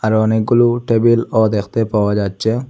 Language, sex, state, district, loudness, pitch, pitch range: Bengali, male, Assam, Hailakandi, -15 LUFS, 110 Hz, 110-115 Hz